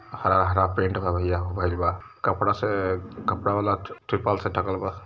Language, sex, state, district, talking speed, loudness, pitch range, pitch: Hindi, male, Uttar Pradesh, Varanasi, 180 wpm, -25 LUFS, 90-100 Hz, 95 Hz